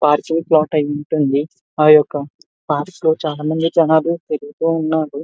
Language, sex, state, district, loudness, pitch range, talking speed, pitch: Telugu, male, Andhra Pradesh, Visakhapatnam, -17 LUFS, 150-160 Hz, 125 wpm, 155 Hz